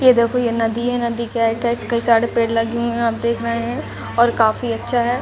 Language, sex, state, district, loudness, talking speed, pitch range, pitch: Hindi, female, Chhattisgarh, Raigarh, -19 LUFS, 265 wpm, 230-235 Hz, 235 Hz